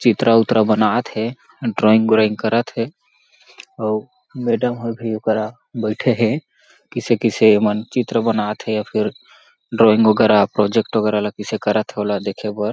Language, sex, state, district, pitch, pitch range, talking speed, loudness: Chhattisgarhi, male, Chhattisgarh, Jashpur, 110 Hz, 105-115 Hz, 160 wpm, -18 LUFS